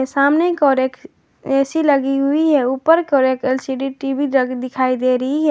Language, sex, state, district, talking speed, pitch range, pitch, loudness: Hindi, female, Jharkhand, Ranchi, 205 wpm, 260-290 Hz, 275 Hz, -17 LUFS